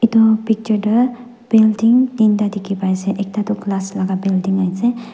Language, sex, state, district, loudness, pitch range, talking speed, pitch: Nagamese, female, Nagaland, Dimapur, -16 LUFS, 195-230 Hz, 150 wpm, 215 Hz